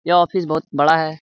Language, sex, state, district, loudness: Hindi, male, Bihar, Lakhisarai, -17 LUFS